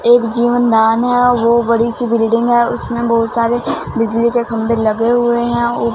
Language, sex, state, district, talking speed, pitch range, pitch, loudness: Hindi, female, Punjab, Fazilka, 190 wpm, 230-240 Hz, 235 Hz, -14 LUFS